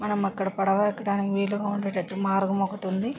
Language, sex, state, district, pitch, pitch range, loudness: Telugu, female, Andhra Pradesh, Guntur, 195 Hz, 195-205 Hz, -26 LUFS